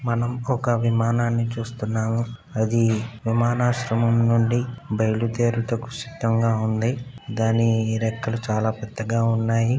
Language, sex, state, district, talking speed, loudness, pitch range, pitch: Telugu, male, Andhra Pradesh, Srikakulam, 100 wpm, -23 LUFS, 115-120 Hz, 115 Hz